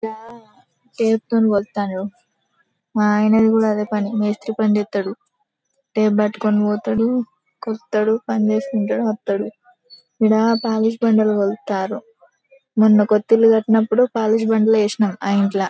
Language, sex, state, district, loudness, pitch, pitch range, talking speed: Telugu, female, Telangana, Karimnagar, -18 LUFS, 220 Hz, 210-230 Hz, 115 wpm